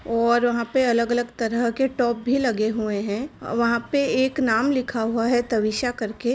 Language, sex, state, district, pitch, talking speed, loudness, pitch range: Hindi, female, Uttar Pradesh, Jalaun, 235 Hz, 200 wpm, -22 LUFS, 230-255 Hz